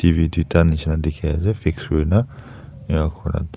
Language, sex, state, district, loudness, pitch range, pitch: Nagamese, male, Nagaland, Dimapur, -20 LUFS, 80-105 Hz, 85 Hz